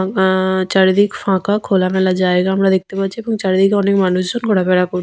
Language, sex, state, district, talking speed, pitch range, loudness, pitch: Bengali, female, West Bengal, Jhargram, 190 wpm, 185-200 Hz, -15 LUFS, 190 Hz